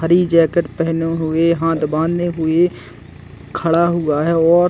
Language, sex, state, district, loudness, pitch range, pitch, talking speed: Hindi, male, Chhattisgarh, Bastar, -16 LUFS, 165-170 Hz, 165 Hz, 140 wpm